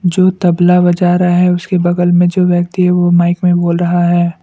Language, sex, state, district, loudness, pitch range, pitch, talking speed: Hindi, male, Assam, Kamrup Metropolitan, -11 LUFS, 175-180 Hz, 175 Hz, 230 wpm